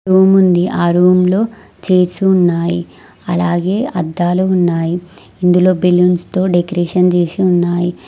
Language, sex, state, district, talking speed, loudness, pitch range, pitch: Telugu, female, Telangana, Mahabubabad, 110 wpm, -13 LUFS, 175-185 Hz, 180 Hz